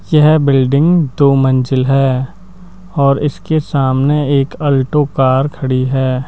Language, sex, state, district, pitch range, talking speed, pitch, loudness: Hindi, male, Madhya Pradesh, Bhopal, 130-150 Hz, 125 wpm, 140 Hz, -13 LUFS